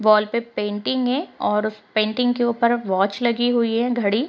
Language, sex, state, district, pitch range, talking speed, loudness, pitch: Hindi, female, Bihar, East Champaran, 215-245 Hz, 225 wpm, -21 LUFS, 235 Hz